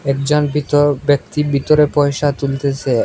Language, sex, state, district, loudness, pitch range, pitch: Bengali, male, Assam, Hailakandi, -16 LUFS, 140-150 Hz, 145 Hz